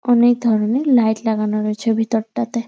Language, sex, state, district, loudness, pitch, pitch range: Bengali, female, West Bengal, Purulia, -17 LUFS, 225 Hz, 220-240 Hz